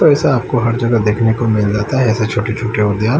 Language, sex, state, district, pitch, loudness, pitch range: Hindi, male, Chandigarh, Chandigarh, 115 Hz, -15 LUFS, 110-120 Hz